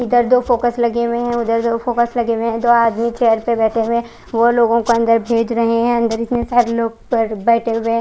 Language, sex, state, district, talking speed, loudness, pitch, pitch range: Hindi, female, Odisha, Khordha, 245 wpm, -16 LUFS, 235 Hz, 230-240 Hz